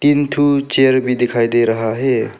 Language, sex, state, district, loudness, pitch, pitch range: Hindi, male, Arunachal Pradesh, Papum Pare, -15 LUFS, 130 Hz, 120-140 Hz